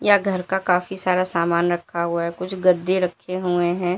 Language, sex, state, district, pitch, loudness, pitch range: Hindi, female, Uttar Pradesh, Lalitpur, 180 Hz, -21 LUFS, 175-185 Hz